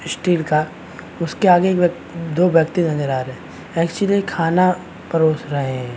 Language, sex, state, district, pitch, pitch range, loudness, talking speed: Hindi, male, Chhattisgarh, Bastar, 165 Hz, 155-180 Hz, -18 LUFS, 150 wpm